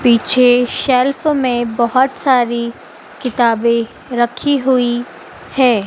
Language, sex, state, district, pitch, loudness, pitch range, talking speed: Hindi, female, Madhya Pradesh, Dhar, 245 Hz, -15 LUFS, 235-260 Hz, 90 wpm